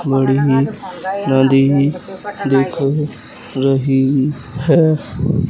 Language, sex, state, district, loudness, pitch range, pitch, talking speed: Hindi, male, Madhya Pradesh, Katni, -16 LUFS, 135-160 Hz, 140 Hz, 55 wpm